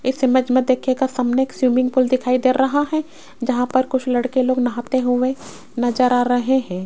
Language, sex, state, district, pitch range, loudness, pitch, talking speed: Hindi, female, Rajasthan, Jaipur, 250-260 Hz, -19 LUFS, 255 Hz, 190 wpm